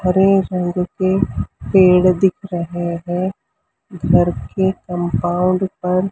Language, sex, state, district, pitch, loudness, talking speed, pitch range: Hindi, male, Maharashtra, Mumbai Suburban, 185 Hz, -17 LUFS, 110 wpm, 175-190 Hz